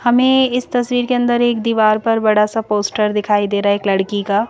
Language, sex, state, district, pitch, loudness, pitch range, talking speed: Hindi, female, Madhya Pradesh, Bhopal, 215 Hz, -16 LUFS, 205-240 Hz, 240 wpm